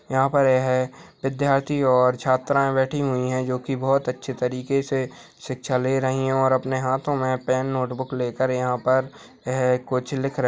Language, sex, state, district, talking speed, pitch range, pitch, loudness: Hindi, male, Chhattisgarh, Jashpur, 185 wpm, 125-135 Hz, 130 Hz, -23 LUFS